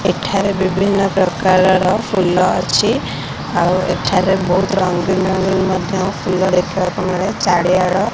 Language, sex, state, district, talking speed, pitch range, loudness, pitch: Odia, female, Odisha, Khordha, 120 wpm, 180-190 Hz, -15 LUFS, 185 Hz